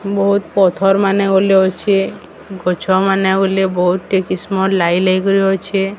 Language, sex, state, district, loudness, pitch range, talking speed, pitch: Odia, female, Odisha, Sambalpur, -14 LUFS, 185-195 Hz, 130 wpm, 195 Hz